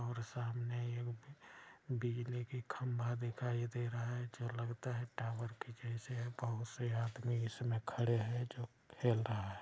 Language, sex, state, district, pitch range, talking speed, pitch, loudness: Hindi, male, Bihar, Araria, 115-120 Hz, 170 wpm, 120 Hz, -41 LUFS